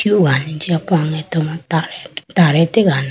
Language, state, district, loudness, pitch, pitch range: Idu Mishmi, Arunachal Pradesh, Lower Dibang Valley, -16 LUFS, 165 Hz, 155-180 Hz